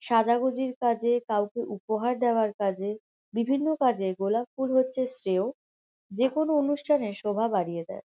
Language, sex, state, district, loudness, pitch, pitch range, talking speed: Bengali, female, West Bengal, Kolkata, -27 LUFS, 235 Hz, 205-260 Hz, 125 wpm